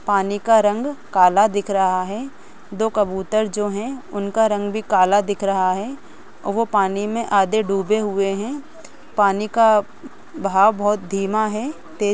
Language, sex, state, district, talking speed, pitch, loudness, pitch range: Hindi, female, Chhattisgarh, Rajnandgaon, 170 wpm, 205 Hz, -19 LUFS, 195-220 Hz